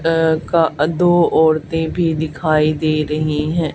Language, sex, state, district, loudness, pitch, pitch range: Hindi, female, Haryana, Charkhi Dadri, -16 LUFS, 160 Hz, 155-165 Hz